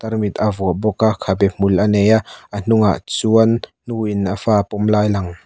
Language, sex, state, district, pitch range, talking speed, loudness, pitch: Mizo, male, Mizoram, Aizawl, 100-110 Hz, 240 wpm, -17 LUFS, 105 Hz